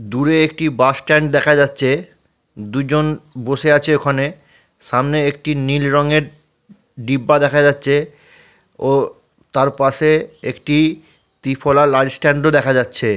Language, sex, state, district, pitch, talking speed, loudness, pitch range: Bengali, male, West Bengal, Kolkata, 145 Hz, 125 wpm, -15 LUFS, 135-155 Hz